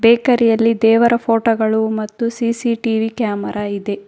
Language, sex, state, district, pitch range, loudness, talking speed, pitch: Kannada, female, Karnataka, Bangalore, 220-235 Hz, -16 LUFS, 145 wpm, 230 Hz